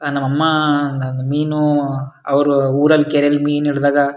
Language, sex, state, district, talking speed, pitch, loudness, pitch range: Kannada, male, Karnataka, Shimoga, 145 wpm, 145 Hz, -16 LUFS, 140-150 Hz